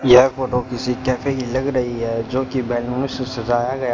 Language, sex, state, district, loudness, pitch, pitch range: Hindi, male, Haryana, Rohtak, -20 LUFS, 125 Hz, 120-130 Hz